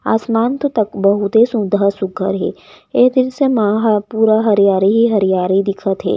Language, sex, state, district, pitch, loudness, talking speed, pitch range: Chhattisgarhi, female, Chhattisgarh, Raigarh, 210 Hz, -15 LUFS, 155 wpm, 200-225 Hz